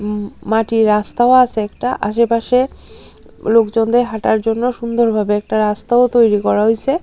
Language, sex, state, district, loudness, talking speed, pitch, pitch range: Bengali, female, Tripura, Unakoti, -15 LUFS, 135 wpm, 225 Hz, 215-240 Hz